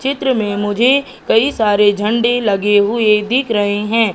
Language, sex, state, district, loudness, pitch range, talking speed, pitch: Hindi, female, Madhya Pradesh, Katni, -14 LUFS, 205-245 Hz, 160 wpm, 220 Hz